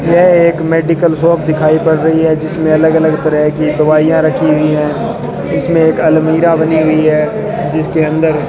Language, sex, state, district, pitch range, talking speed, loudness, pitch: Hindi, male, Rajasthan, Bikaner, 155-165 Hz, 185 wpm, -11 LUFS, 160 Hz